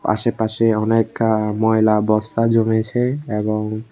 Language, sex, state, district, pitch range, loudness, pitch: Bengali, male, Tripura, West Tripura, 110-115 Hz, -18 LUFS, 110 Hz